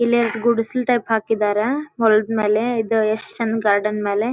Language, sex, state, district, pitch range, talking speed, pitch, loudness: Kannada, female, Karnataka, Dharwad, 215-235 Hz, 150 wpm, 225 Hz, -19 LUFS